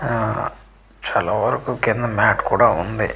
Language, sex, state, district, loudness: Telugu, male, Andhra Pradesh, Manyam, -19 LUFS